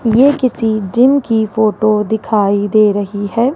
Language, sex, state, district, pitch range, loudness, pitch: Hindi, female, Rajasthan, Jaipur, 210-235 Hz, -13 LUFS, 220 Hz